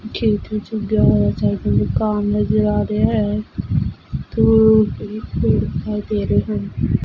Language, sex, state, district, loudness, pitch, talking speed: Punjabi, female, Punjab, Fazilka, -18 LUFS, 210 Hz, 155 wpm